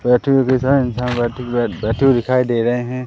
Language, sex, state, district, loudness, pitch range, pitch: Hindi, male, Madhya Pradesh, Katni, -17 LUFS, 120-130 Hz, 125 Hz